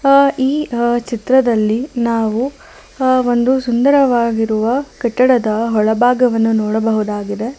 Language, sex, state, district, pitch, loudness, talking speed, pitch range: Kannada, female, Karnataka, Bangalore, 240 Hz, -15 LUFS, 85 wpm, 225-260 Hz